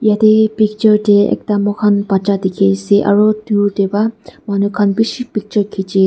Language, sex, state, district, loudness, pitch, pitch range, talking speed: Nagamese, female, Nagaland, Dimapur, -14 LUFS, 205 Hz, 200-215 Hz, 150 wpm